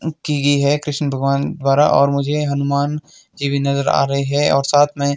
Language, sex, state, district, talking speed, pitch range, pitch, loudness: Hindi, male, Himachal Pradesh, Shimla, 210 wpm, 140-145 Hz, 140 Hz, -17 LUFS